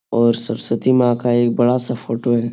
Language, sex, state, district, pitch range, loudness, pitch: Hindi, male, Bihar, Supaul, 115-125 Hz, -17 LUFS, 120 Hz